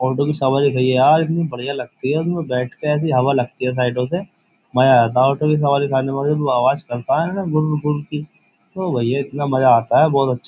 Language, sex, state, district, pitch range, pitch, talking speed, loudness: Hindi, male, Uttar Pradesh, Jyotiba Phule Nagar, 130-155 Hz, 140 Hz, 245 wpm, -18 LUFS